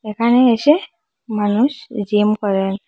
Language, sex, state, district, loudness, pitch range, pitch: Bengali, female, Assam, Hailakandi, -17 LUFS, 210-245 Hz, 215 Hz